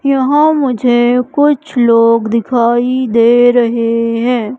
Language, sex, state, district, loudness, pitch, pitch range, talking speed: Hindi, female, Madhya Pradesh, Katni, -11 LUFS, 245 Hz, 230-255 Hz, 105 wpm